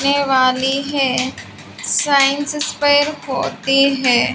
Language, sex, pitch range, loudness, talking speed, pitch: Hindi, female, 260-285 Hz, -16 LUFS, 85 wpm, 275 Hz